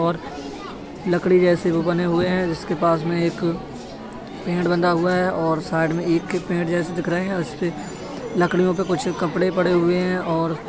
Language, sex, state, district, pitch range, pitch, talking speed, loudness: Hindi, male, Uttar Pradesh, Etah, 170-180 Hz, 175 Hz, 200 wpm, -21 LUFS